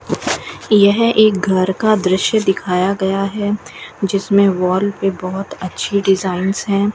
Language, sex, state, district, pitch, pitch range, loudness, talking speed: Hindi, female, Rajasthan, Bikaner, 195 Hz, 190-205 Hz, -16 LUFS, 130 wpm